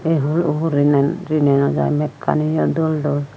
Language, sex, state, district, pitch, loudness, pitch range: Chakma, female, Tripura, Unakoti, 150 Hz, -18 LUFS, 145-160 Hz